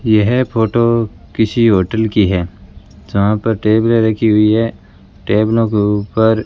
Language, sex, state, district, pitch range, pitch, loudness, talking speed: Hindi, male, Rajasthan, Bikaner, 100-115 Hz, 110 Hz, -14 LUFS, 150 wpm